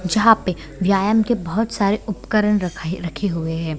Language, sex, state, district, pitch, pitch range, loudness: Hindi, female, Bihar, Sitamarhi, 195 Hz, 170-215 Hz, -20 LUFS